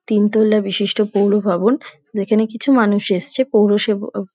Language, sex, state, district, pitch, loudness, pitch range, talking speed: Bengali, female, West Bengal, Dakshin Dinajpur, 210 Hz, -17 LUFS, 205-225 Hz, 165 wpm